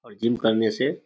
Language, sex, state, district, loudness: Hindi, male, Bihar, Samastipur, -23 LUFS